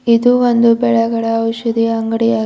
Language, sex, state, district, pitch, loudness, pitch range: Kannada, female, Karnataka, Bidar, 230 Hz, -14 LUFS, 225-235 Hz